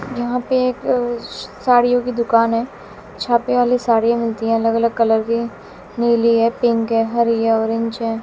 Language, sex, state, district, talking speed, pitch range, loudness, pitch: Hindi, female, Bihar, West Champaran, 175 wpm, 230-245 Hz, -17 LUFS, 230 Hz